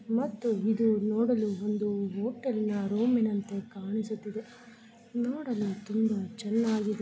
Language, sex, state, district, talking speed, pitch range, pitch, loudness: Kannada, female, Karnataka, Dakshina Kannada, 85 wpm, 210-230 Hz, 220 Hz, -30 LUFS